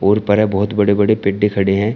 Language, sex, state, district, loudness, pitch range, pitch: Hindi, male, Uttar Pradesh, Shamli, -15 LUFS, 100-105 Hz, 105 Hz